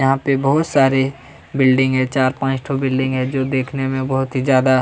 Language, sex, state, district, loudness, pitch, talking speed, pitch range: Hindi, male, Chhattisgarh, Kabirdham, -17 LUFS, 135 Hz, 200 wpm, 130-135 Hz